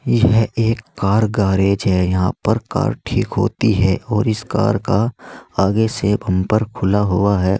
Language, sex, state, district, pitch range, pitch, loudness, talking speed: Hindi, male, Uttar Pradesh, Saharanpur, 95-115 Hz, 105 Hz, -17 LUFS, 165 wpm